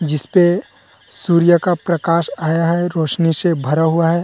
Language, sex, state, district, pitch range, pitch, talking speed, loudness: Chhattisgarhi, male, Chhattisgarh, Rajnandgaon, 160-175 Hz, 170 Hz, 155 wpm, -15 LUFS